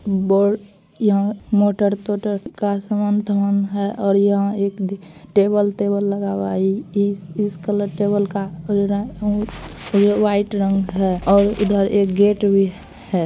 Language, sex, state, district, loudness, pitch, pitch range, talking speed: Maithili, female, Bihar, Madhepura, -19 LUFS, 200 Hz, 195-205 Hz, 155 wpm